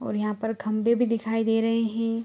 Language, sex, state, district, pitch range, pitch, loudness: Hindi, female, Bihar, Saharsa, 220-230 Hz, 225 Hz, -25 LUFS